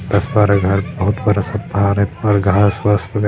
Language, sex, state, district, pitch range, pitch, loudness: Hindi, male, Bihar, Sitamarhi, 100-105 Hz, 100 Hz, -16 LUFS